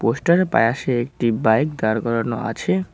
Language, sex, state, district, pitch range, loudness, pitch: Bengali, male, West Bengal, Cooch Behar, 115-145 Hz, -20 LUFS, 120 Hz